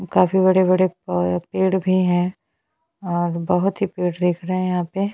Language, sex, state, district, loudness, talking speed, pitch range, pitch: Hindi, female, Chhattisgarh, Bastar, -20 LUFS, 175 wpm, 175-190 Hz, 185 Hz